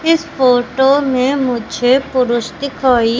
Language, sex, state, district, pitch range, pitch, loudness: Hindi, female, Madhya Pradesh, Katni, 245-275 Hz, 260 Hz, -14 LUFS